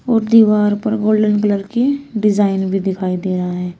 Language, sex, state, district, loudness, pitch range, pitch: Hindi, female, Uttar Pradesh, Shamli, -16 LUFS, 190-220 Hz, 210 Hz